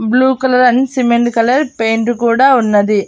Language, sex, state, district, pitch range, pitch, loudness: Telugu, female, Andhra Pradesh, Annamaya, 225-260 Hz, 240 Hz, -12 LUFS